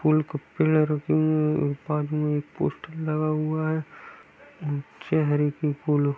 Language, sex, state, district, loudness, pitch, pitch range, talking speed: Hindi, male, Uttar Pradesh, Etah, -26 LUFS, 150 Hz, 145-155 Hz, 60 wpm